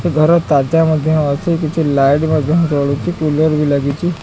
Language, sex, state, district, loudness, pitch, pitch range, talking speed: Odia, male, Odisha, Khordha, -14 LUFS, 155 Hz, 145-165 Hz, 170 wpm